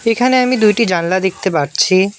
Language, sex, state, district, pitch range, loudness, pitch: Bengali, male, West Bengal, Alipurduar, 185-230 Hz, -14 LUFS, 200 Hz